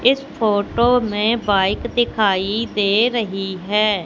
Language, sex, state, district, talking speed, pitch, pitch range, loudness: Hindi, female, Madhya Pradesh, Katni, 120 wpm, 215 Hz, 200-235 Hz, -18 LUFS